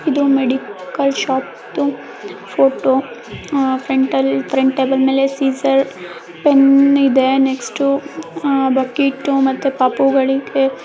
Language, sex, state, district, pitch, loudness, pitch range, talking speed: Kannada, female, Karnataka, Mysore, 270 Hz, -15 LUFS, 265-275 Hz, 105 wpm